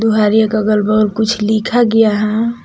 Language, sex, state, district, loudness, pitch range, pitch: Hindi, female, Jharkhand, Palamu, -13 LUFS, 215-225 Hz, 220 Hz